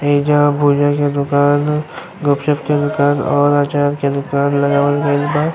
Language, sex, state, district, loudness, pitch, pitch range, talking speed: Bhojpuri, male, Uttar Pradesh, Ghazipur, -15 LUFS, 145 Hz, 140-145 Hz, 160 wpm